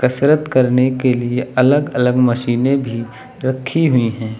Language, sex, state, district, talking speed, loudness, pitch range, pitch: Hindi, male, Uttar Pradesh, Lucknow, 135 wpm, -16 LUFS, 125-130 Hz, 130 Hz